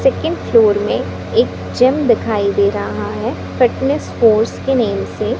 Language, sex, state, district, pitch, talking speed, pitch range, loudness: Hindi, female, Chhattisgarh, Raipur, 250 Hz, 155 wpm, 220-290 Hz, -16 LUFS